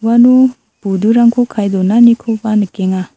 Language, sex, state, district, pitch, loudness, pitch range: Garo, female, Meghalaya, South Garo Hills, 225 Hz, -11 LUFS, 195-235 Hz